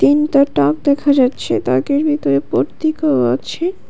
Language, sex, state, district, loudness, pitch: Bengali, female, Tripura, West Tripura, -15 LUFS, 280 Hz